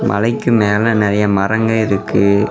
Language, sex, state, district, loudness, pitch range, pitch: Tamil, male, Tamil Nadu, Namakkal, -14 LUFS, 100-110 Hz, 105 Hz